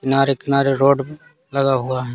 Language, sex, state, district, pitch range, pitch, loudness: Hindi, male, Bihar, Patna, 135-140 Hz, 135 Hz, -18 LUFS